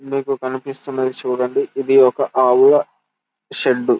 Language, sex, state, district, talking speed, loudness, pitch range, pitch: Telugu, male, Telangana, Karimnagar, 120 wpm, -17 LUFS, 130-135 Hz, 135 Hz